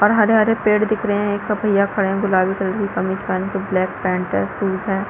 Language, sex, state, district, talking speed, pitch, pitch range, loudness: Hindi, female, Chhattisgarh, Balrampur, 260 wpm, 200 Hz, 190-210 Hz, -19 LUFS